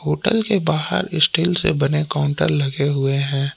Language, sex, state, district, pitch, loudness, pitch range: Hindi, male, Jharkhand, Palamu, 150 Hz, -18 LUFS, 140-165 Hz